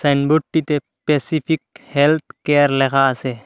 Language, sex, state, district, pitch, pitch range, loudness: Bengali, male, Assam, Hailakandi, 145 Hz, 135-155 Hz, -18 LUFS